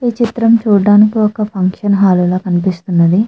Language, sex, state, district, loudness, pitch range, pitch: Telugu, female, Andhra Pradesh, Srikakulam, -12 LUFS, 185-215 Hz, 200 Hz